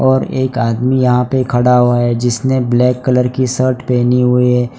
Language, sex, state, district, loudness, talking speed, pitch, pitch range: Hindi, male, Gujarat, Valsad, -13 LUFS, 200 wpm, 125 Hz, 125-130 Hz